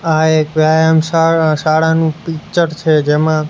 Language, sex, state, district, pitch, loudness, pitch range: Gujarati, male, Gujarat, Gandhinagar, 160 Hz, -13 LUFS, 155-160 Hz